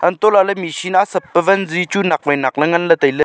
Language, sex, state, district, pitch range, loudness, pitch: Wancho, male, Arunachal Pradesh, Longding, 155-195 Hz, -15 LUFS, 175 Hz